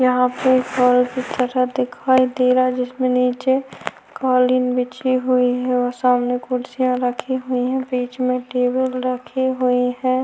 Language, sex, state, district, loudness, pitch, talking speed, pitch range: Hindi, female, Chhattisgarh, Korba, -19 LUFS, 255 Hz, 165 wpm, 250-255 Hz